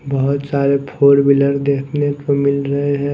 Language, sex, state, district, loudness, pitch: Hindi, male, Chhattisgarh, Raipur, -16 LUFS, 140 Hz